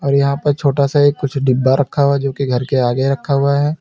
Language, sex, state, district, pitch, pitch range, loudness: Hindi, male, Uttar Pradesh, Lalitpur, 140 Hz, 135-140 Hz, -15 LUFS